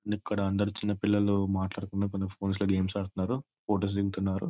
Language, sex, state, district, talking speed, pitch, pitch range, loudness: Telugu, male, Telangana, Nalgonda, 160 wpm, 100 Hz, 95-105 Hz, -30 LUFS